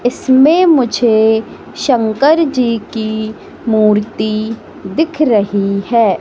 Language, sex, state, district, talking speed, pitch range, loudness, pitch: Hindi, female, Madhya Pradesh, Katni, 85 wpm, 215-260 Hz, -13 LUFS, 225 Hz